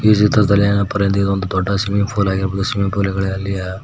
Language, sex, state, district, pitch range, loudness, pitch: Kannada, male, Karnataka, Koppal, 95-100 Hz, -17 LUFS, 100 Hz